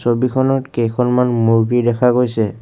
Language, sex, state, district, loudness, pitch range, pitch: Assamese, male, Assam, Kamrup Metropolitan, -16 LUFS, 115-125 Hz, 120 Hz